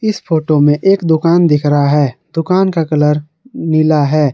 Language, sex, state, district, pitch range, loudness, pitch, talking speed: Hindi, male, Jharkhand, Garhwa, 150-170 Hz, -12 LUFS, 155 Hz, 180 wpm